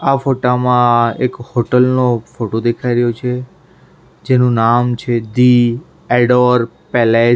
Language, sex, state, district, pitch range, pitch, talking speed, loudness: Gujarati, male, Maharashtra, Mumbai Suburban, 120-125 Hz, 120 Hz, 140 wpm, -14 LUFS